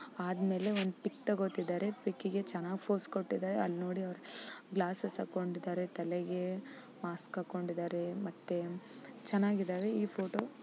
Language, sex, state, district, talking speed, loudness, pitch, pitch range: Kannada, female, Karnataka, Gulbarga, 115 wpm, -37 LUFS, 190 Hz, 180-205 Hz